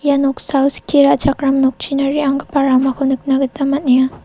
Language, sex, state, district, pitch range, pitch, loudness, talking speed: Garo, female, Meghalaya, South Garo Hills, 270-280 Hz, 275 Hz, -15 LUFS, 140 wpm